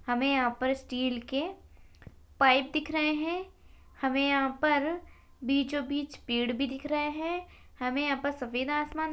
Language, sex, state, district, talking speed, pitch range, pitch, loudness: Hindi, female, Chhattisgarh, Sarguja, 150 wpm, 260-300 Hz, 280 Hz, -30 LUFS